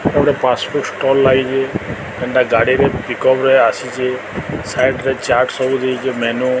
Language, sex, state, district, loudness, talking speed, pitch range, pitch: Odia, male, Odisha, Sambalpur, -16 LUFS, 125 wpm, 125-135 Hz, 130 Hz